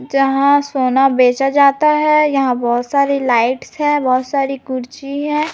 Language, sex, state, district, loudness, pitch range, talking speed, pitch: Hindi, female, Chhattisgarh, Raipur, -15 LUFS, 255-285 Hz, 150 wpm, 275 Hz